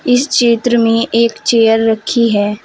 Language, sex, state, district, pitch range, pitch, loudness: Hindi, female, Uttar Pradesh, Saharanpur, 225-240 Hz, 230 Hz, -12 LUFS